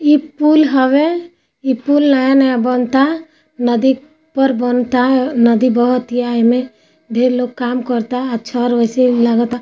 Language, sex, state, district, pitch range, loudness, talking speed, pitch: Hindi, female, Bihar, Gopalganj, 245-275 Hz, -14 LUFS, 150 wpm, 250 Hz